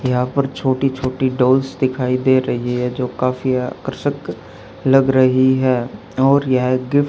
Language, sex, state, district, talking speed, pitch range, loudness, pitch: Hindi, male, Haryana, Charkhi Dadri, 170 wpm, 125-135 Hz, -17 LUFS, 130 Hz